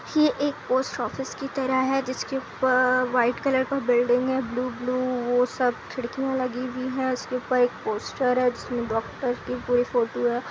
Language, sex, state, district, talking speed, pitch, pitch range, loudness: Hindi, female, Bihar, Kishanganj, 190 wpm, 255 Hz, 245-260 Hz, -25 LUFS